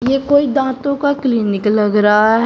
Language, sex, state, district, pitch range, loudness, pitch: Hindi, female, Uttar Pradesh, Shamli, 210-280 Hz, -14 LUFS, 250 Hz